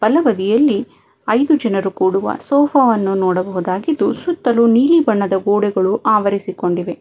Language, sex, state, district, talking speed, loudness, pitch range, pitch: Kannada, female, Karnataka, Bangalore, 105 wpm, -16 LUFS, 190-255 Hz, 210 Hz